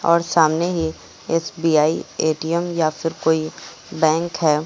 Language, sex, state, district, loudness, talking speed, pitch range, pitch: Hindi, female, Uttar Pradesh, Lucknow, -20 LUFS, 130 wpm, 155-170 Hz, 160 Hz